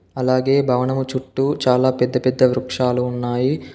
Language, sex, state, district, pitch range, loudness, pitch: Telugu, male, Telangana, Komaram Bheem, 125-130 Hz, -19 LUFS, 130 Hz